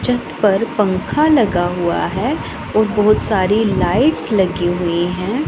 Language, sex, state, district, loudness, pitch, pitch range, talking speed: Hindi, female, Punjab, Pathankot, -16 LUFS, 205 Hz, 180-220 Hz, 140 wpm